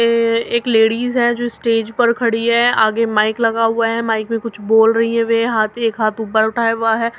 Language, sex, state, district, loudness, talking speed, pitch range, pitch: Hindi, female, Uttar Pradesh, Muzaffarnagar, -16 LUFS, 235 wpm, 225-235 Hz, 230 Hz